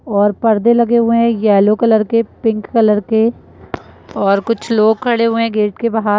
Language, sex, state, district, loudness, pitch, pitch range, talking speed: Hindi, female, Uttar Pradesh, Etah, -14 LUFS, 225 Hz, 210-230 Hz, 205 wpm